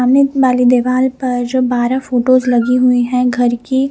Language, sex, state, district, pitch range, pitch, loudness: Hindi, female, Punjab, Fazilka, 245-260 Hz, 250 Hz, -13 LUFS